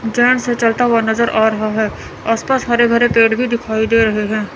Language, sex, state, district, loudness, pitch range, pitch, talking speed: Hindi, female, Chandigarh, Chandigarh, -14 LUFS, 220-240 Hz, 230 Hz, 235 wpm